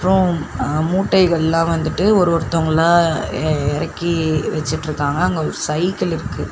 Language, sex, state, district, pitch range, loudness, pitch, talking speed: Tamil, female, Tamil Nadu, Chennai, 155-175 Hz, -18 LUFS, 165 Hz, 110 wpm